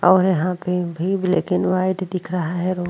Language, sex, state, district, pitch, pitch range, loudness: Hindi, female, Uttar Pradesh, Jyotiba Phule Nagar, 180 Hz, 180-185 Hz, -21 LUFS